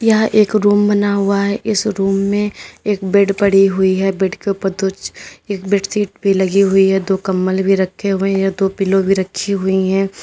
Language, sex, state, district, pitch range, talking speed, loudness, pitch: Hindi, female, Uttar Pradesh, Lalitpur, 190-200 Hz, 210 wpm, -15 LUFS, 195 Hz